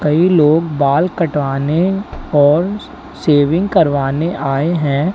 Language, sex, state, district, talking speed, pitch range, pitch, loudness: Hindi, male, Uttar Pradesh, Lalitpur, 105 wpm, 145-175 Hz, 155 Hz, -14 LUFS